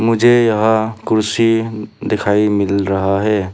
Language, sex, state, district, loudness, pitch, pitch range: Hindi, male, Arunachal Pradesh, Papum Pare, -15 LUFS, 110 Hz, 100-115 Hz